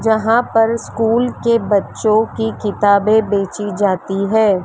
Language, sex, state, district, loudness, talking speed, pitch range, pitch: Hindi, female, Maharashtra, Mumbai Suburban, -16 LUFS, 130 wpm, 200-225 Hz, 215 Hz